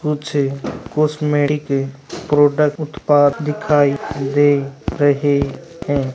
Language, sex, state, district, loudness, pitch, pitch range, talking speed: Hindi, male, Bihar, Gaya, -17 LUFS, 145 Hz, 140-150 Hz, 80 wpm